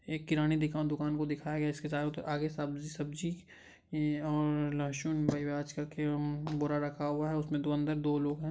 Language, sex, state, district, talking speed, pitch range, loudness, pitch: Hindi, male, Bihar, Madhepura, 190 wpm, 145-155 Hz, -34 LUFS, 150 Hz